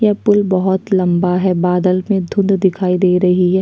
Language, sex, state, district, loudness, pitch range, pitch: Hindi, female, Chhattisgarh, Sukma, -14 LUFS, 180-195 Hz, 185 Hz